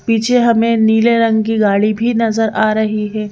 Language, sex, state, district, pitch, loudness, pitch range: Hindi, female, Madhya Pradesh, Bhopal, 220 Hz, -14 LUFS, 215-230 Hz